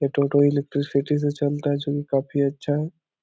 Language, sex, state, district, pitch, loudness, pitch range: Hindi, male, Bihar, Supaul, 145 Hz, -23 LUFS, 140-145 Hz